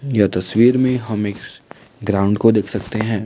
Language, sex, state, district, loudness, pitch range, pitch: Hindi, male, Assam, Kamrup Metropolitan, -17 LUFS, 100-115 Hz, 105 Hz